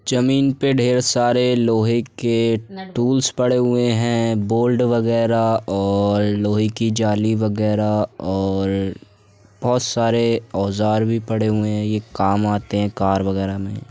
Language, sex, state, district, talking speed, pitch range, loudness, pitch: Hindi, male, Uttar Pradesh, Budaun, 140 wpm, 105-120 Hz, -19 LUFS, 110 Hz